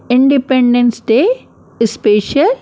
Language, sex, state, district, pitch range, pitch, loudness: Hindi, female, Maharashtra, Mumbai Suburban, 230-275 Hz, 250 Hz, -13 LUFS